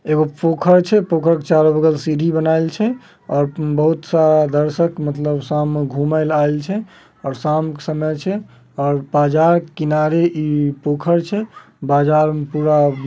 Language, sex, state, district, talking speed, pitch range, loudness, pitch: Magahi, male, Bihar, Samastipur, 160 wpm, 150-165 Hz, -17 LUFS, 155 Hz